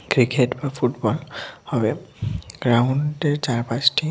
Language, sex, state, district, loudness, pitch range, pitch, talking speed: Bengali, male, Tripura, West Tripura, -22 LUFS, 120-145 Hz, 130 Hz, 90 wpm